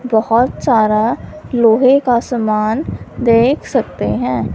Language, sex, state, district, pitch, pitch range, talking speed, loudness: Hindi, female, Punjab, Fazilka, 235 Hz, 220-250 Hz, 105 wpm, -14 LUFS